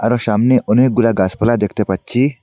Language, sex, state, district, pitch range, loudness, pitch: Bengali, male, Assam, Hailakandi, 105-125 Hz, -15 LUFS, 115 Hz